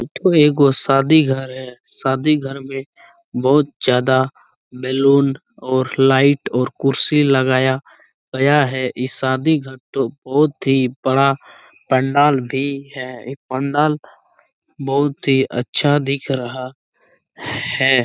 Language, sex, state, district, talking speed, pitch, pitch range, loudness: Hindi, male, Chhattisgarh, Bastar, 100 wpm, 135 Hz, 130-145 Hz, -17 LUFS